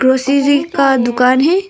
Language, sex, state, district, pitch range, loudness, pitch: Hindi, female, Arunachal Pradesh, Papum Pare, 260-285 Hz, -12 LUFS, 275 Hz